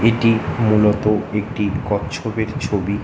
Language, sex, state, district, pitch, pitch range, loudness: Bengali, male, West Bengal, North 24 Parganas, 105 Hz, 105-110 Hz, -19 LUFS